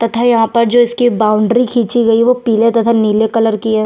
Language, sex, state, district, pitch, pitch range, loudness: Hindi, female, Chhattisgarh, Sukma, 230 Hz, 225-240 Hz, -12 LUFS